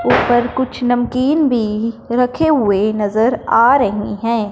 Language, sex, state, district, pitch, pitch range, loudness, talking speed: Hindi, female, Punjab, Fazilka, 240 Hz, 215-250 Hz, -15 LUFS, 135 wpm